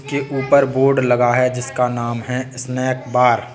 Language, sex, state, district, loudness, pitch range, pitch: Hindi, male, Uttar Pradesh, Lalitpur, -17 LUFS, 125-135 Hz, 125 Hz